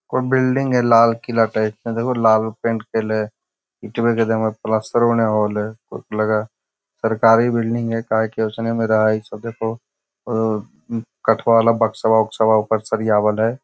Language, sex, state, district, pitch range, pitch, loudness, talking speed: Magahi, male, Bihar, Gaya, 110-115 Hz, 110 Hz, -18 LUFS, 155 wpm